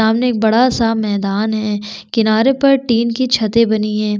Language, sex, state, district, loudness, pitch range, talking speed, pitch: Hindi, female, Chhattisgarh, Sukma, -15 LUFS, 215-240 Hz, 185 wpm, 220 Hz